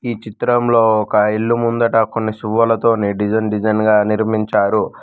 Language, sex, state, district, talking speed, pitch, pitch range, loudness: Telugu, male, Telangana, Mahabubabad, 130 wpm, 110 Hz, 105-115 Hz, -16 LUFS